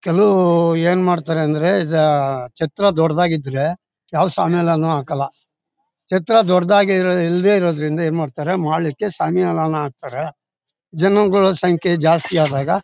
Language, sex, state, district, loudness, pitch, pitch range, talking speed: Kannada, male, Karnataka, Mysore, -17 LUFS, 170 Hz, 160-185 Hz, 110 wpm